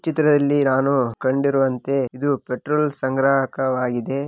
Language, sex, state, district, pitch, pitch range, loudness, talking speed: Kannada, male, Karnataka, Raichur, 135 Hz, 130-140 Hz, -20 LUFS, 100 wpm